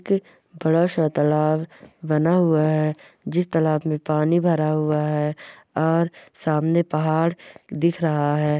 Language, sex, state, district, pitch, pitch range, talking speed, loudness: Hindi, male, West Bengal, Purulia, 155 Hz, 155-170 Hz, 140 wpm, -21 LUFS